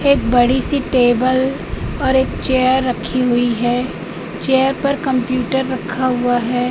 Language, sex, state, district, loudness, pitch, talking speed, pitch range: Hindi, female, Madhya Pradesh, Katni, -17 LUFS, 255 Hz, 145 wpm, 245-265 Hz